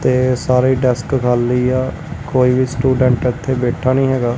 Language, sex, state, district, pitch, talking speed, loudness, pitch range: Punjabi, male, Punjab, Kapurthala, 130 Hz, 165 wpm, -16 LUFS, 125-130 Hz